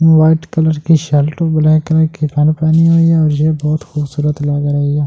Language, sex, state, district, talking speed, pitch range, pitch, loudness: Hindi, male, Delhi, New Delhi, 225 wpm, 150-160 Hz, 155 Hz, -13 LUFS